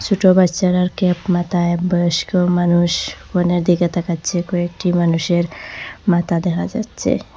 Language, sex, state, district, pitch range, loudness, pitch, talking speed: Bengali, female, Assam, Hailakandi, 175-180 Hz, -17 LUFS, 175 Hz, 115 wpm